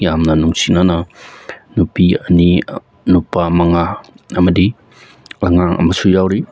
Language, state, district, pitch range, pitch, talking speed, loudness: Manipuri, Manipur, Imphal West, 85-95 Hz, 90 Hz, 90 wpm, -14 LUFS